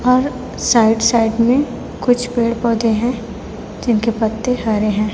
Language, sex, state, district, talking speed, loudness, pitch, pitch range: Hindi, female, Chhattisgarh, Raipur, 140 wpm, -16 LUFS, 230 Hz, 225-245 Hz